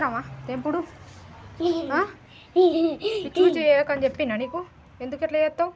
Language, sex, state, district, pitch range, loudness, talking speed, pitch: Telugu, female, Andhra Pradesh, Srikakulam, 285-345 Hz, -24 LUFS, 95 wpm, 320 Hz